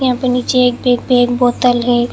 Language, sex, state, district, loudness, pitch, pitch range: Hindi, female, Assam, Hailakandi, -13 LUFS, 245 Hz, 245-250 Hz